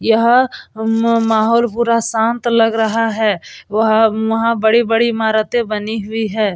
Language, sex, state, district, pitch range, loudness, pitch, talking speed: Hindi, female, Bihar, Vaishali, 220-230 Hz, -15 LUFS, 225 Hz, 145 wpm